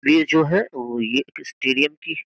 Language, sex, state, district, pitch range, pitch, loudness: Hindi, male, Uttar Pradesh, Jyotiba Phule Nagar, 130-185 Hz, 150 Hz, -20 LUFS